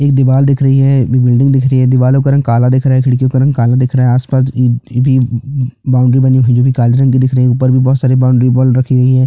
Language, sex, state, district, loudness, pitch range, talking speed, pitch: Hindi, male, Chhattisgarh, Jashpur, -10 LUFS, 125-130 Hz, 300 wpm, 130 Hz